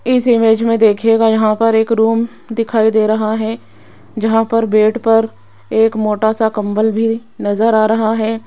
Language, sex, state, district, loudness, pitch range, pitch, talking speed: Hindi, female, Rajasthan, Jaipur, -14 LUFS, 220-225 Hz, 220 Hz, 175 wpm